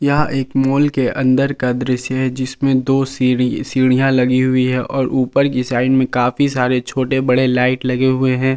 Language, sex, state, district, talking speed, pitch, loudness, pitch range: Hindi, male, Jharkhand, Palamu, 195 wpm, 130 Hz, -16 LUFS, 125-135 Hz